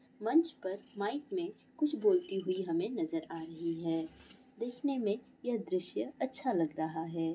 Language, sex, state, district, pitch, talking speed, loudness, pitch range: Hindi, female, Bihar, Bhagalpur, 205 Hz, 165 wpm, -35 LUFS, 165-265 Hz